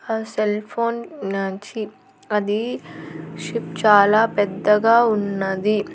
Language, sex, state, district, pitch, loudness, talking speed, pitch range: Telugu, female, Andhra Pradesh, Annamaya, 210 Hz, -20 LUFS, 100 wpm, 195-220 Hz